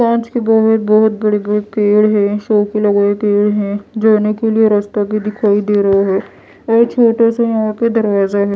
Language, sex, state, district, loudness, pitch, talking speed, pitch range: Hindi, female, Odisha, Malkangiri, -13 LUFS, 210 Hz, 190 wpm, 205-220 Hz